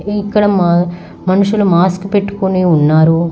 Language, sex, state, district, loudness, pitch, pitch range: Telugu, male, Andhra Pradesh, Guntur, -12 LUFS, 185 Hz, 175-200 Hz